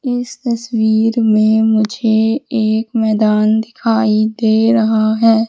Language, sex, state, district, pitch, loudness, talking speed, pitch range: Hindi, female, Madhya Pradesh, Katni, 220 Hz, -14 LUFS, 110 wpm, 220-230 Hz